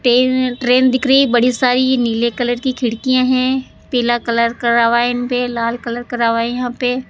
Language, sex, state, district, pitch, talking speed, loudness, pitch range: Hindi, female, Rajasthan, Jaipur, 245 Hz, 195 wpm, -16 LUFS, 235-255 Hz